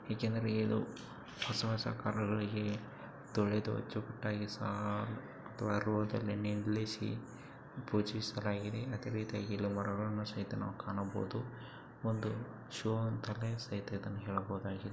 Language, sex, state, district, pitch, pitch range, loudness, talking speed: Kannada, male, Karnataka, Chamarajanagar, 105 Hz, 105-115 Hz, -38 LUFS, 85 wpm